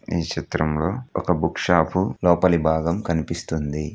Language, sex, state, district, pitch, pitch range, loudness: Telugu, male, Andhra Pradesh, Guntur, 85 Hz, 80-90 Hz, -22 LUFS